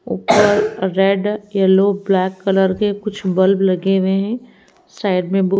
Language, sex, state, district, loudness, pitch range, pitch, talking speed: Hindi, female, Haryana, Rohtak, -16 LUFS, 190-205 Hz, 195 Hz, 140 wpm